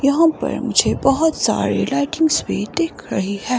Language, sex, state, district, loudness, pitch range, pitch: Hindi, female, Himachal Pradesh, Shimla, -18 LUFS, 250-320 Hz, 285 Hz